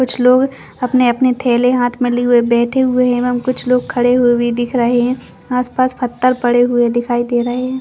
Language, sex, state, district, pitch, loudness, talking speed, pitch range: Hindi, female, Chhattisgarh, Bastar, 245 Hz, -14 LUFS, 245 wpm, 240-250 Hz